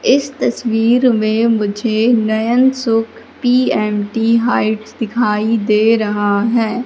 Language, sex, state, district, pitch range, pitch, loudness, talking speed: Hindi, female, Madhya Pradesh, Katni, 215-240 Hz, 225 Hz, -15 LUFS, 105 wpm